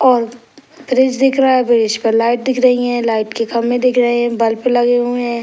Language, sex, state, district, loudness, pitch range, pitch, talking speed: Hindi, male, Bihar, Sitamarhi, -14 LUFS, 235-255 Hz, 245 Hz, 255 wpm